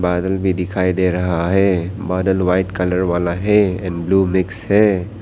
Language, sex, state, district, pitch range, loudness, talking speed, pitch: Hindi, male, Arunachal Pradesh, Papum Pare, 90-95 Hz, -17 LUFS, 170 wpm, 95 Hz